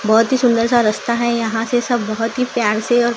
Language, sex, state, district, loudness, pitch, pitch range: Hindi, female, Maharashtra, Gondia, -17 LUFS, 235 Hz, 225-240 Hz